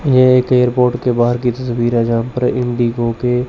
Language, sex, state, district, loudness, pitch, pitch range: Hindi, male, Chandigarh, Chandigarh, -15 LUFS, 125 Hz, 120-125 Hz